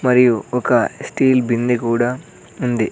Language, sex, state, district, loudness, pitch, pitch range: Telugu, male, Andhra Pradesh, Sri Satya Sai, -17 LUFS, 125 Hz, 120-125 Hz